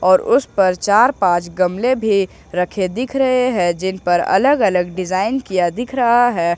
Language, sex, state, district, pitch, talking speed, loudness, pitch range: Hindi, male, Jharkhand, Ranchi, 190 Hz, 165 wpm, -16 LUFS, 180-245 Hz